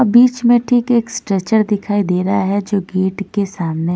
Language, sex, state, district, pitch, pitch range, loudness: Hindi, female, Punjab, Kapurthala, 200 Hz, 190-235 Hz, -16 LUFS